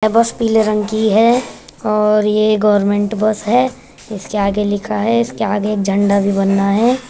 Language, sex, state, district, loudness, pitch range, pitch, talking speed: Hindi, male, Uttar Pradesh, Jyotiba Phule Nagar, -15 LUFS, 205-225 Hz, 210 Hz, 175 wpm